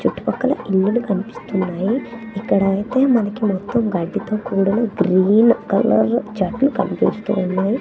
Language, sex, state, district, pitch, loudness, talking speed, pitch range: Telugu, female, Andhra Pradesh, Manyam, 205 Hz, -18 LUFS, 115 wpm, 195-235 Hz